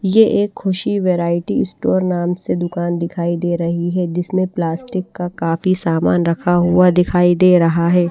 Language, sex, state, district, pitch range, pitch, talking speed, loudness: Hindi, female, Odisha, Malkangiri, 170-185 Hz, 175 Hz, 170 wpm, -16 LUFS